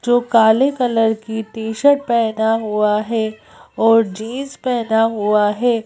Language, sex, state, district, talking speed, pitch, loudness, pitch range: Hindi, female, Madhya Pradesh, Bhopal, 135 wpm, 225 Hz, -17 LUFS, 220-240 Hz